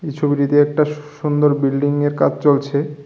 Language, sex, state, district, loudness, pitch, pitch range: Bengali, male, Tripura, West Tripura, -17 LUFS, 145 Hz, 145-150 Hz